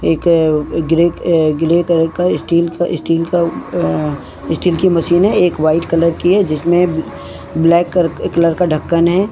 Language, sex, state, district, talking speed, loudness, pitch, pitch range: Hindi, female, Uttarakhand, Tehri Garhwal, 155 wpm, -14 LUFS, 170 Hz, 160-175 Hz